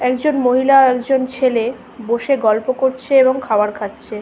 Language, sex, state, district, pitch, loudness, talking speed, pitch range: Bengali, female, West Bengal, Malda, 255 Hz, -16 LUFS, 170 wpm, 230-265 Hz